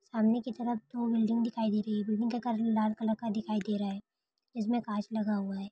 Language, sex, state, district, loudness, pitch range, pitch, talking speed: Hindi, female, Jharkhand, Jamtara, -32 LUFS, 210-230 Hz, 220 Hz, 250 wpm